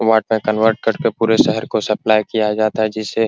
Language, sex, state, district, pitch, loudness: Hindi, male, Bihar, Supaul, 110 Hz, -17 LUFS